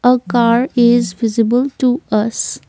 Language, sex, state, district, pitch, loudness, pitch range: English, female, Assam, Kamrup Metropolitan, 240 Hz, -14 LUFS, 230-250 Hz